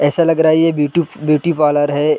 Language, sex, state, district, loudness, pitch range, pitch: Hindi, male, Bihar, Sitamarhi, -14 LUFS, 145-165 Hz, 150 Hz